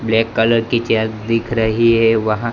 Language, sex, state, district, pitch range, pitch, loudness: Hindi, male, Gujarat, Gandhinagar, 110-115 Hz, 115 Hz, -16 LUFS